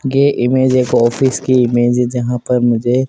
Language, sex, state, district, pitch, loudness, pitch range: Hindi, male, Madhya Pradesh, Dhar, 125 Hz, -14 LUFS, 120-130 Hz